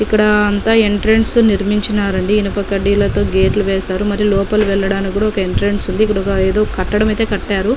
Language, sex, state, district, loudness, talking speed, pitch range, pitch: Telugu, female, Telangana, Nalgonda, -15 LUFS, 155 wpm, 195-210 Hz, 205 Hz